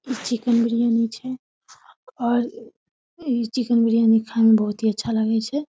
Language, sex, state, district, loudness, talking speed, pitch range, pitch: Maithili, female, Bihar, Samastipur, -21 LUFS, 155 wpm, 225-250 Hz, 235 Hz